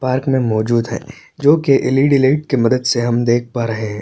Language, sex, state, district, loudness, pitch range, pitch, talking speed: Hindi, male, Chhattisgarh, Korba, -16 LUFS, 115-135 Hz, 125 Hz, 270 wpm